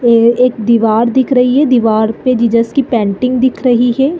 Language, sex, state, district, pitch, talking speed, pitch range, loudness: Hindi, female, Chhattisgarh, Bastar, 245 Hz, 200 wpm, 230-255 Hz, -11 LUFS